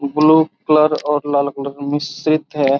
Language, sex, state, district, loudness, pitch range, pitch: Hindi, female, Bihar, Araria, -16 LUFS, 140-155 Hz, 150 Hz